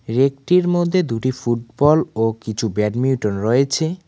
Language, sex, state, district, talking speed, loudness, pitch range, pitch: Bengali, male, West Bengal, Cooch Behar, 120 wpm, -19 LUFS, 115-160 Hz, 130 Hz